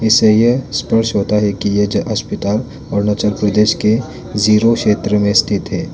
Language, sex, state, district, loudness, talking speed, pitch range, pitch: Hindi, male, Arunachal Pradesh, Lower Dibang Valley, -15 LUFS, 170 wpm, 105-115 Hz, 105 Hz